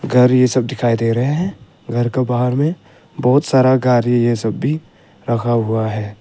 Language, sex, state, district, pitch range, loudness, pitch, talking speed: Hindi, male, Arunachal Pradesh, Longding, 115-130 Hz, -16 LUFS, 125 Hz, 195 wpm